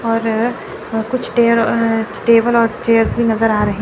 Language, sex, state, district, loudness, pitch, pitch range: Hindi, female, Chandigarh, Chandigarh, -15 LUFS, 230 Hz, 225-235 Hz